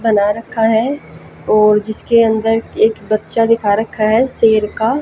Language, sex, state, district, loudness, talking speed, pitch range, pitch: Hindi, female, Haryana, Jhajjar, -14 LUFS, 155 wpm, 215-225 Hz, 220 Hz